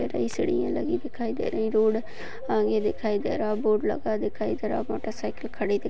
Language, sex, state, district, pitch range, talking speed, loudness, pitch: Hindi, female, Maharashtra, Dhule, 215-230 Hz, 205 wpm, -27 LUFS, 220 Hz